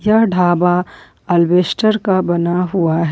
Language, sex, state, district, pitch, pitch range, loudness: Hindi, female, Jharkhand, Ranchi, 180 Hz, 175-195 Hz, -15 LUFS